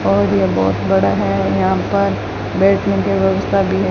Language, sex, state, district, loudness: Hindi, female, Rajasthan, Bikaner, -16 LUFS